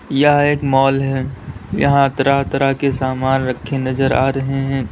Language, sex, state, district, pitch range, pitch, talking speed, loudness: Hindi, male, Uttar Pradesh, Lalitpur, 130-140 Hz, 135 Hz, 160 wpm, -16 LUFS